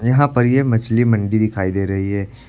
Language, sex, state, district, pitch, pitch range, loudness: Hindi, male, Uttar Pradesh, Lucknow, 110 Hz, 100-120 Hz, -17 LUFS